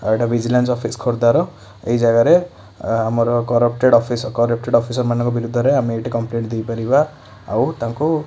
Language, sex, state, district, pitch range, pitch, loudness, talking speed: Odia, male, Odisha, Khordha, 115-120 Hz, 120 Hz, -18 LUFS, 160 wpm